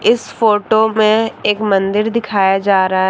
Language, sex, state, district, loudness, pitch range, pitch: Hindi, female, Jharkhand, Deoghar, -14 LUFS, 195-220 Hz, 210 Hz